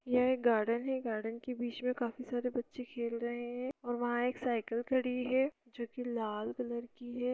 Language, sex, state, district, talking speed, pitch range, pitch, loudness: Hindi, female, Bihar, East Champaran, 210 wpm, 235-250 Hz, 245 Hz, -36 LUFS